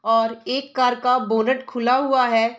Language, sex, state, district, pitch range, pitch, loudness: Hindi, female, Bihar, Saharsa, 225-260 Hz, 250 Hz, -20 LUFS